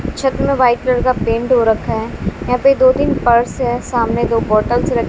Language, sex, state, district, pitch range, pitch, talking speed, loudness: Hindi, female, Bihar, West Champaran, 235-260 Hz, 250 Hz, 225 wpm, -15 LUFS